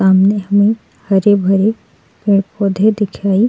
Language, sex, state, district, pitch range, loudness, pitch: Hindi, female, Uttar Pradesh, Jalaun, 195-210 Hz, -14 LUFS, 200 Hz